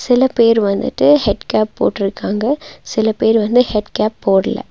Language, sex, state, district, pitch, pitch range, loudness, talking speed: Tamil, female, Tamil Nadu, Nilgiris, 220 Hz, 210-245 Hz, -15 LUFS, 140 wpm